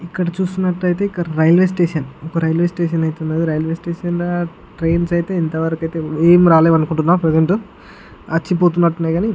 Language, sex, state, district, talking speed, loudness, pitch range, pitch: Telugu, male, Andhra Pradesh, Guntur, 190 wpm, -17 LUFS, 160-175 Hz, 170 Hz